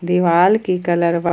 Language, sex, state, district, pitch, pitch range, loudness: Hindi, female, Jharkhand, Ranchi, 175 Hz, 170-180 Hz, -16 LUFS